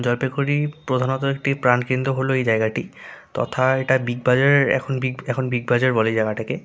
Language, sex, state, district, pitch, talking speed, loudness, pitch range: Bengali, male, West Bengal, Jalpaiguri, 130 Hz, 145 wpm, -20 LUFS, 120-135 Hz